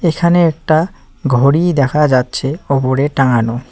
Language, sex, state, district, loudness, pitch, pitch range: Bengali, male, West Bengal, Cooch Behar, -14 LUFS, 140 Hz, 130-160 Hz